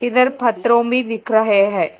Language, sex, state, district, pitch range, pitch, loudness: Hindi, female, Telangana, Hyderabad, 220-245 Hz, 235 Hz, -16 LUFS